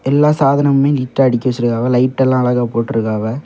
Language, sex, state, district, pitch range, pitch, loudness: Tamil, male, Tamil Nadu, Kanyakumari, 120-135 Hz, 125 Hz, -14 LUFS